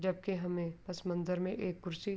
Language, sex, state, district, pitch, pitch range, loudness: Urdu, female, Andhra Pradesh, Anantapur, 180 Hz, 175-190 Hz, -38 LUFS